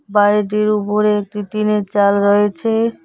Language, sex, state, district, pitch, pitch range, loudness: Bengali, female, West Bengal, Cooch Behar, 210 Hz, 205-215 Hz, -16 LUFS